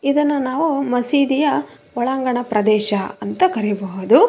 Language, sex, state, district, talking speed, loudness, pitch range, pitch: Kannada, female, Karnataka, Raichur, 100 wpm, -19 LUFS, 210-280 Hz, 245 Hz